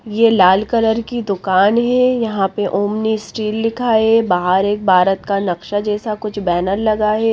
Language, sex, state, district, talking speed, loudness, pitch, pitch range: Hindi, female, Haryana, Rohtak, 180 wpm, -16 LUFS, 210 Hz, 195-225 Hz